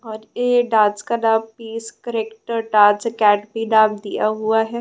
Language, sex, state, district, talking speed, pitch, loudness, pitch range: Hindi, female, Bihar, Gaya, 160 wpm, 225 Hz, -18 LUFS, 215-230 Hz